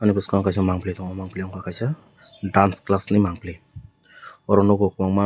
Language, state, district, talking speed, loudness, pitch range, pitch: Kokborok, Tripura, West Tripura, 170 wpm, -22 LUFS, 95-100 Hz, 95 Hz